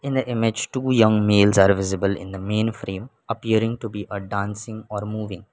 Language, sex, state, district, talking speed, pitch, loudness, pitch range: English, male, Sikkim, Gangtok, 205 wpm, 105 Hz, -22 LUFS, 100-115 Hz